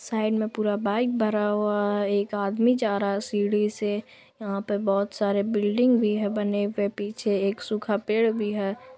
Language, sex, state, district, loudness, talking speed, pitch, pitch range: Hindi, female, Bihar, Purnia, -25 LUFS, 200 wpm, 210 Hz, 205-215 Hz